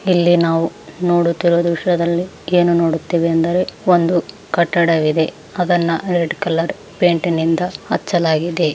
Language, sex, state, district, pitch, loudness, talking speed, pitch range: Kannada, female, Karnataka, Raichur, 170 Hz, -17 LUFS, 105 wpm, 165-175 Hz